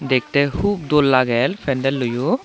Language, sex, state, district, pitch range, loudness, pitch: Chakma, male, Tripura, Dhalai, 130-150 Hz, -18 LUFS, 140 Hz